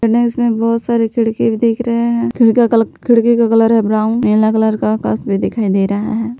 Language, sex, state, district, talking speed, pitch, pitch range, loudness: Hindi, female, Jharkhand, Palamu, 215 wpm, 230 Hz, 220-235 Hz, -14 LUFS